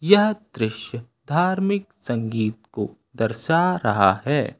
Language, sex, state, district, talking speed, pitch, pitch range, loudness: Hindi, male, Uttar Pradesh, Lucknow, 105 wpm, 125 Hz, 110-180 Hz, -22 LUFS